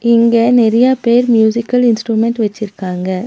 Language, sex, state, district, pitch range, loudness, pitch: Tamil, female, Tamil Nadu, Nilgiris, 220-235 Hz, -12 LUFS, 230 Hz